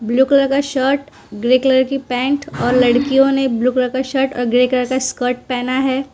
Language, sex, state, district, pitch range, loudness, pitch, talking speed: Hindi, female, Gujarat, Valsad, 250-270 Hz, -16 LUFS, 260 Hz, 215 wpm